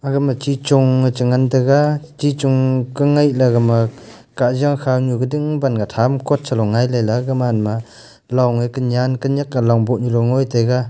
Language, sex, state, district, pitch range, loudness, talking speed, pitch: Wancho, male, Arunachal Pradesh, Longding, 120-135 Hz, -17 LUFS, 205 wpm, 130 Hz